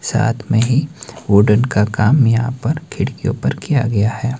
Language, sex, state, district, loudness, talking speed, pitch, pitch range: Hindi, male, Himachal Pradesh, Shimla, -16 LUFS, 180 wpm, 120 Hz, 110-140 Hz